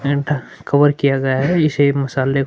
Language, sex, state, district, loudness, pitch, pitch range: Hindi, male, Chhattisgarh, Korba, -17 LUFS, 140 Hz, 135-145 Hz